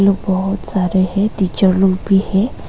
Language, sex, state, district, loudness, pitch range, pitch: Hindi, female, Arunachal Pradesh, Longding, -16 LUFS, 190-200 Hz, 195 Hz